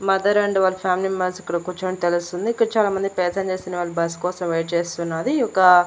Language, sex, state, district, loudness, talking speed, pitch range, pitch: Telugu, female, Andhra Pradesh, Annamaya, -21 LUFS, 205 wpm, 175-195 Hz, 185 Hz